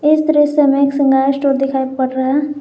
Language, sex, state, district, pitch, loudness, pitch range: Hindi, female, Jharkhand, Garhwa, 275 Hz, -14 LUFS, 270-290 Hz